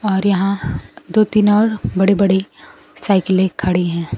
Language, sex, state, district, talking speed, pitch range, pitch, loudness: Hindi, female, Bihar, Kaimur, 145 wpm, 180-200 Hz, 190 Hz, -16 LUFS